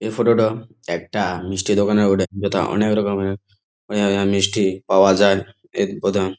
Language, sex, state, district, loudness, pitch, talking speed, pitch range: Bengali, male, West Bengal, Jalpaiguri, -19 LUFS, 100 Hz, 150 wpm, 95-105 Hz